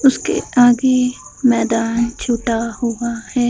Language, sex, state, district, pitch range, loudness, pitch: Hindi, female, Bihar, Madhepura, 230-250 Hz, -17 LUFS, 240 Hz